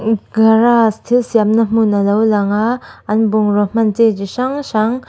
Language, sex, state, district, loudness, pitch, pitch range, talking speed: Mizo, female, Mizoram, Aizawl, -14 LUFS, 220 Hz, 215-230 Hz, 165 wpm